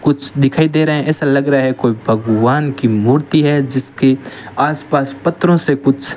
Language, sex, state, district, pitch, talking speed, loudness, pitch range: Hindi, male, Rajasthan, Bikaner, 140 Hz, 195 wpm, -14 LUFS, 130-150 Hz